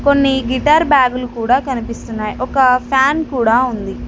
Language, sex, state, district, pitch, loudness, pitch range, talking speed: Telugu, female, Telangana, Mahabubabad, 255 Hz, -15 LUFS, 240-270 Hz, 130 wpm